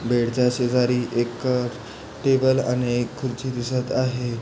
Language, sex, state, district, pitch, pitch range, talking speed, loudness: Marathi, male, Maharashtra, Pune, 125 Hz, 120-130 Hz, 135 wpm, -23 LUFS